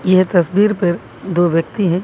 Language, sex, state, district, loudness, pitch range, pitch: Hindi, male, Odisha, Malkangiri, -16 LUFS, 175-195 Hz, 180 Hz